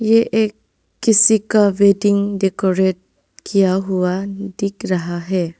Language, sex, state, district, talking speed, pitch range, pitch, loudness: Hindi, female, West Bengal, Alipurduar, 120 wpm, 190-205 Hz, 200 Hz, -17 LUFS